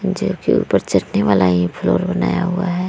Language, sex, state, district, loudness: Hindi, female, Bihar, Vaishali, -17 LUFS